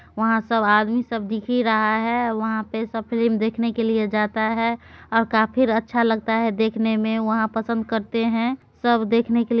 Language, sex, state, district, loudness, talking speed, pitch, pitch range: Maithili, female, Bihar, Supaul, -21 LUFS, 205 wpm, 225 Hz, 220-230 Hz